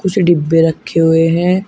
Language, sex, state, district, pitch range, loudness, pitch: Hindi, male, Uttar Pradesh, Shamli, 165-180 Hz, -12 LUFS, 165 Hz